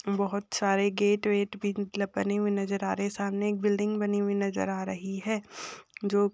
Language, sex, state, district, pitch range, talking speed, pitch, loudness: Hindi, female, Uttar Pradesh, Etah, 200-205 Hz, 220 wpm, 200 Hz, -29 LUFS